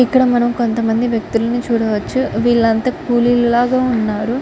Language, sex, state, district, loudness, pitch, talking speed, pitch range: Telugu, female, Andhra Pradesh, Guntur, -15 LUFS, 240 Hz, 150 wpm, 230-245 Hz